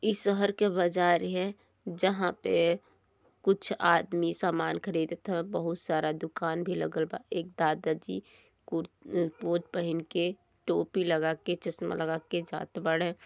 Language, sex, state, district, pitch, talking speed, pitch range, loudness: Bhojpuri, male, Uttar Pradesh, Gorakhpur, 170 Hz, 150 wpm, 165-180 Hz, -31 LUFS